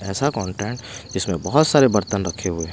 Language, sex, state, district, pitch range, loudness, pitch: Hindi, male, Punjab, Pathankot, 95-125 Hz, -20 LUFS, 100 Hz